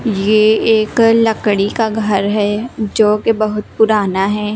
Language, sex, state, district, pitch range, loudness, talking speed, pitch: Hindi, female, Himachal Pradesh, Shimla, 210-220 Hz, -14 LUFS, 145 wpm, 215 Hz